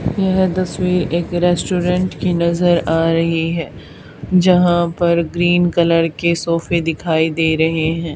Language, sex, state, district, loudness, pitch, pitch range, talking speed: Hindi, female, Haryana, Charkhi Dadri, -16 LUFS, 170 Hz, 165-180 Hz, 140 wpm